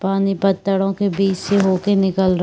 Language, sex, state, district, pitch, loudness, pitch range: Chhattisgarhi, female, Chhattisgarh, Rajnandgaon, 195 Hz, -18 LUFS, 190-195 Hz